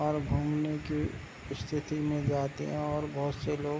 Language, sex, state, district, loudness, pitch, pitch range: Hindi, male, Bihar, Begusarai, -33 LUFS, 150 Hz, 140-150 Hz